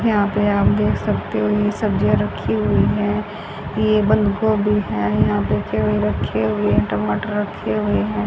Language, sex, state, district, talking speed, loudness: Hindi, female, Haryana, Rohtak, 175 wpm, -19 LUFS